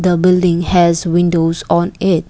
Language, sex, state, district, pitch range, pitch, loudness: English, female, Assam, Kamrup Metropolitan, 170-180 Hz, 175 Hz, -13 LUFS